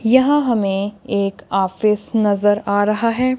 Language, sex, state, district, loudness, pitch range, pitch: Hindi, female, Punjab, Kapurthala, -18 LUFS, 200-230 Hz, 210 Hz